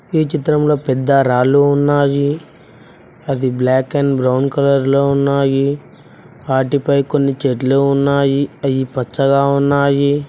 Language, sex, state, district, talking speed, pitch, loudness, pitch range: Telugu, male, Telangana, Mahabubabad, 105 wpm, 140 Hz, -15 LUFS, 135-140 Hz